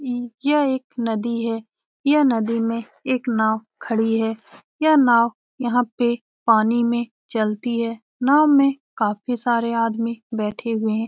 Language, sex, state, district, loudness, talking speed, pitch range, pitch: Hindi, female, Bihar, Saran, -21 LUFS, 150 wpm, 225-250 Hz, 235 Hz